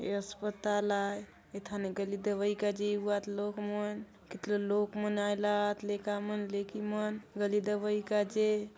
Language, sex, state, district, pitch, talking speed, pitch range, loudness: Halbi, female, Chhattisgarh, Bastar, 205 Hz, 170 wpm, 205-210 Hz, -34 LUFS